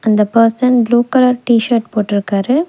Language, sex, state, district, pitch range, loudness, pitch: Tamil, female, Tamil Nadu, Nilgiris, 215-250 Hz, -13 LUFS, 235 Hz